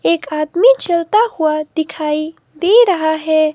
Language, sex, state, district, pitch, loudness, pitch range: Hindi, female, Himachal Pradesh, Shimla, 315 Hz, -15 LUFS, 310-380 Hz